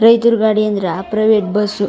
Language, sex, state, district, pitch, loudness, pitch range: Kannada, female, Karnataka, Chamarajanagar, 215 Hz, -14 LUFS, 205-220 Hz